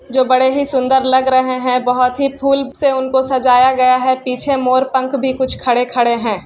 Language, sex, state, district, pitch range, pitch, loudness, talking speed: Hindi, female, Bihar, Kishanganj, 255-265 Hz, 260 Hz, -14 LUFS, 205 wpm